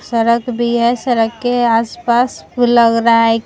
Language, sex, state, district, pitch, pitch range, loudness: Hindi, female, Bihar, Vaishali, 235 Hz, 230-240 Hz, -14 LUFS